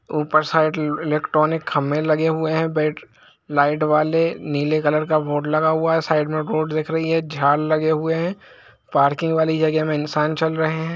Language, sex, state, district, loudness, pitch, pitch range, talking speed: Hindi, male, Jharkhand, Jamtara, -20 LUFS, 155 Hz, 150-160 Hz, 210 wpm